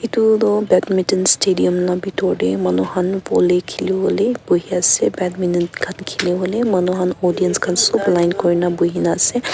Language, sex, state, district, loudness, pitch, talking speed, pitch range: Nagamese, female, Nagaland, Kohima, -17 LUFS, 180 Hz, 165 wpm, 175-195 Hz